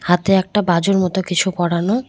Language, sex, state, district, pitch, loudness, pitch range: Bengali, female, West Bengal, Cooch Behar, 185 Hz, -17 LUFS, 175-195 Hz